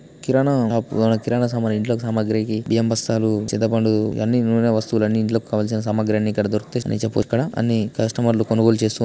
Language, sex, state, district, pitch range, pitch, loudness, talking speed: Telugu, male, Andhra Pradesh, Srikakulam, 110-115 Hz, 110 Hz, -20 LUFS, 95 wpm